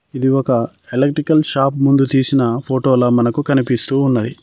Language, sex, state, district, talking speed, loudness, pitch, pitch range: Telugu, male, Telangana, Mahabubabad, 135 wpm, -15 LUFS, 135 Hz, 125-140 Hz